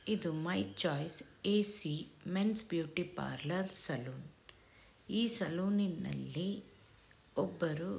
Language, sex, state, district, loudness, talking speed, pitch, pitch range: Kannada, female, Karnataka, Dakshina Kannada, -38 LUFS, 85 wpm, 175 Hz, 150-200 Hz